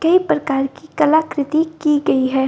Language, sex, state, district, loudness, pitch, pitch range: Hindi, female, Bihar, Gopalganj, -17 LUFS, 300 Hz, 275-315 Hz